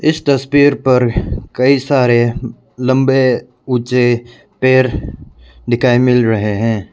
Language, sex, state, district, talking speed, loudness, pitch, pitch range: Hindi, male, Arunachal Pradesh, Lower Dibang Valley, 105 wpm, -14 LUFS, 125 Hz, 115-130 Hz